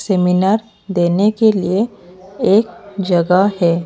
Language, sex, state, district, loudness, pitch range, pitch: Hindi, female, Odisha, Malkangiri, -15 LUFS, 180-210 Hz, 195 Hz